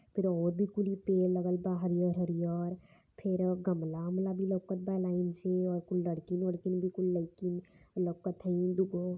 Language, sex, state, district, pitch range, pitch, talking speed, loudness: Hindi, male, Uttar Pradesh, Varanasi, 175-185 Hz, 180 Hz, 175 wpm, -34 LUFS